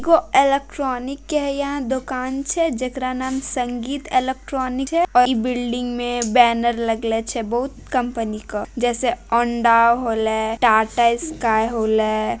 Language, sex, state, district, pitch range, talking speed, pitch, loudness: Hindi, female, Bihar, Bhagalpur, 230-265 Hz, 120 wpm, 245 Hz, -20 LUFS